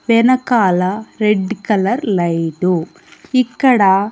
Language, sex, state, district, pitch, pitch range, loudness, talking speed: Telugu, female, Andhra Pradesh, Annamaya, 210 Hz, 185-245 Hz, -15 LUFS, 75 wpm